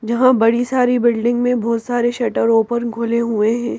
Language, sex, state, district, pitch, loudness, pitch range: Hindi, female, Madhya Pradesh, Bhopal, 235 Hz, -17 LUFS, 230-245 Hz